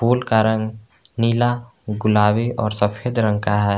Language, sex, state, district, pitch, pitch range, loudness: Hindi, male, Jharkhand, Palamu, 110 Hz, 105-120 Hz, -20 LUFS